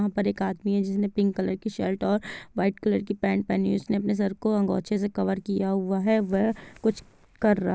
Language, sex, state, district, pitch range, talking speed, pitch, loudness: Hindi, female, Bihar, Gopalganj, 195-210 Hz, 250 wpm, 200 Hz, -26 LUFS